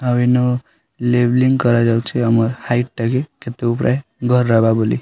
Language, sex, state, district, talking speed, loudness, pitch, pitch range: Odia, male, Odisha, Sambalpur, 145 wpm, -17 LUFS, 120 Hz, 115-125 Hz